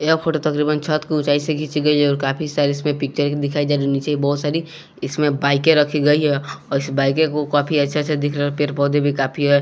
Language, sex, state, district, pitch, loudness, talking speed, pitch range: Hindi, male, Bihar, West Champaran, 145 Hz, -19 LUFS, 260 wpm, 140-150 Hz